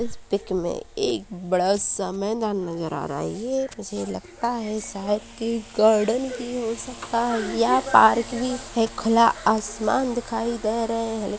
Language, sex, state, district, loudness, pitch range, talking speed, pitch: Hindi, female, Bihar, Purnia, -24 LUFS, 205-235 Hz, 185 wpm, 225 Hz